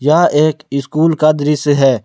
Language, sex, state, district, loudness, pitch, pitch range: Hindi, male, Jharkhand, Palamu, -13 LUFS, 150 Hz, 140-155 Hz